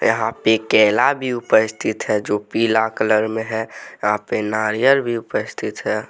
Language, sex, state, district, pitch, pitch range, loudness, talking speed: Hindi, male, Jharkhand, Deoghar, 110 Hz, 110-115 Hz, -19 LUFS, 165 wpm